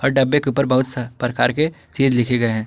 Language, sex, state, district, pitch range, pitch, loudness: Hindi, male, Jharkhand, Garhwa, 125-140 Hz, 130 Hz, -19 LUFS